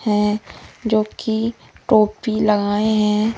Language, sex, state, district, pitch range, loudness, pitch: Hindi, female, Madhya Pradesh, Umaria, 210-220 Hz, -19 LUFS, 215 Hz